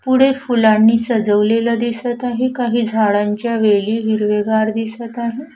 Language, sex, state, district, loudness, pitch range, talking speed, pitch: Marathi, female, Maharashtra, Washim, -16 LUFS, 220-240 Hz, 120 wpm, 230 Hz